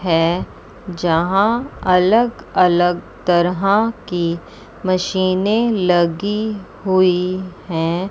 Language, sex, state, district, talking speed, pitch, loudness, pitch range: Hindi, female, Chandigarh, Chandigarh, 75 wpm, 185 Hz, -17 LUFS, 175-200 Hz